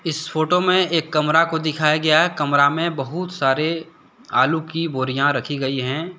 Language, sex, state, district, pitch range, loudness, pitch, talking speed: Hindi, male, Jharkhand, Deoghar, 145-165 Hz, -19 LUFS, 155 Hz, 195 wpm